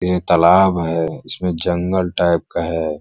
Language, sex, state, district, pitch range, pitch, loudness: Hindi, male, Uttar Pradesh, Ghazipur, 85-90 Hz, 85 Hz, -17 LUFS